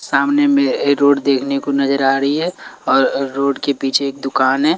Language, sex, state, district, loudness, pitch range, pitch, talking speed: Hindi, male, Bihar, Patna, -16 LUFS, 135-145 Hz, 140 Hz, 200 wpm